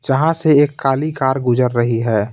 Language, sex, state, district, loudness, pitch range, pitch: Hindi, male, Bihar, Patna, -16 LUFS, 120-145 Hz, 135 Hz